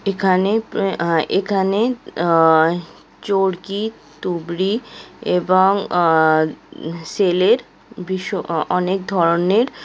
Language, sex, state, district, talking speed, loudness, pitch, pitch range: Bengali, female, West Bengal, Kolkata, 100 wpm, -18 LUFS, 185 Hz, 170-200 Hz